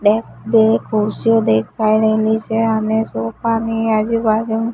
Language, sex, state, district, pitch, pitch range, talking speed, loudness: Gujarati, female, Gujarat, Gandhinagar, 220 Hz, 215-225 Hz, 125 wpm, -16 LUFS